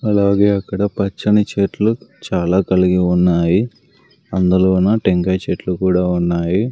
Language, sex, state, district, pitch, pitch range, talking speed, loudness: Telugu, male, Andhra Pradesh, Sri Satya Sai, 95 Hz, 90-100 Hz, 105 wpm, -16 LUFS